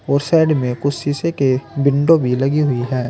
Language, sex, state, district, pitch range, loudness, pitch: Hindi, male, Uttar Pradesh, Saharanpur, 130-150 Hz, -16 LUFS, 140 Hz